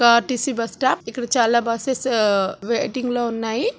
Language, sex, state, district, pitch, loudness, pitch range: Telugu, female, Andhra Pradesh, Chittoor, 235 Hz, -21 LUFS, 230-255 Hz